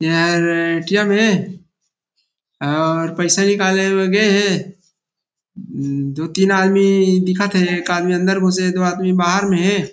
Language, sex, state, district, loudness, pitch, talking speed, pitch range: Chhattisgarhi, male, Chhattisgarh, Rajnandgaon, -16 LUFS, 185 Hz, 145 wpm, 170-195 Hz